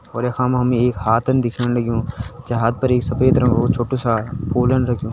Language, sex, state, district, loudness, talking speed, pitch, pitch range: Garhwali, male, Uttarakhand, Tehri Garhwal, -18 LUFS, 200 wpm, 120 Hz, 115-125 Hz